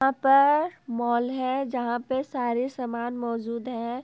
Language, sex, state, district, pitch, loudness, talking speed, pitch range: Hindi, female, Bihar, Gopalganj, 245 Hz, -26 LUFS, 135 wpm, 235-270 Hz